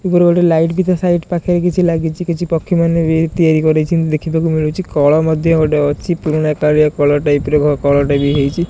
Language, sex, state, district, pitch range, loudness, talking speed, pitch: Odia, male, Odisha, Khordha, 150-170 Hz, -14 LUFS, 200 wpm, 160 Hz